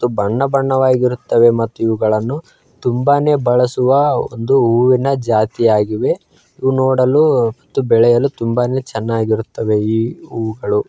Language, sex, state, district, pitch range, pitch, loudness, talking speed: Kannada, male, Karnataka, Bijapur, 115-135 Hz, 120 Hz, -15 LUFS, 90 wpm